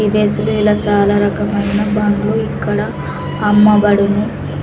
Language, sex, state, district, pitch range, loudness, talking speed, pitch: Telugu, female, Andhra Pradesh, Sri Satya Sai, 200-210 Hz, -14 LUFS, 80 wpm, 205 Hz